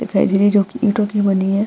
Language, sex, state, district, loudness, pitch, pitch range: Hindi, female, Bihar, Vaishali, -16 LUFS, 205 Hz, 195-210 Hz